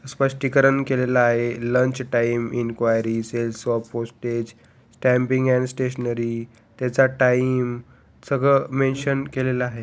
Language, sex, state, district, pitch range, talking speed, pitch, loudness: Marathi, male, Maharashtra, Pune, 115-130 Hz, 110 wpm, 125 Hz, -22 LUFS